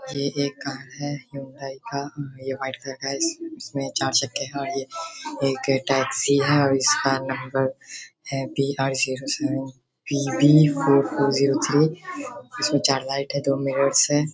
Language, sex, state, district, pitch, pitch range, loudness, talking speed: Hindi, male, Bihar, Darbhanga, 140 Hz, 135-145 Hz, -23 LUFS, 190 wpm